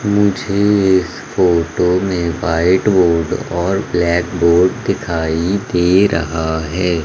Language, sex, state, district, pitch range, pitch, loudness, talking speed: Hindi, male, Madhya Pradesh, Umaria, 85-95 Hz, 90 Hz, -15 LUFS, 110 wpm